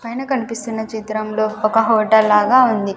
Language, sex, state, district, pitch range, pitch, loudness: Telugu, female, Andhra Pradesh, Sri Satya Sai, 215-230 Hz, 220 Hz, -16 LUFS